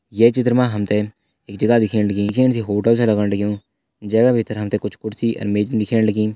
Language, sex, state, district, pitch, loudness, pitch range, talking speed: Hindi, male, Uttarakhand, Uttarkashi, 105 Hz, -18 LUFS, 105-115 Hz, 255 wpm